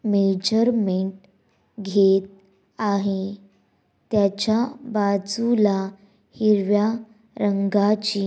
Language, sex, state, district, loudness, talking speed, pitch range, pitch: Marathi, female, Maharashtra, Dhule, -22 LUFS, 50 wpm, 195-215 Hz, 205 Hz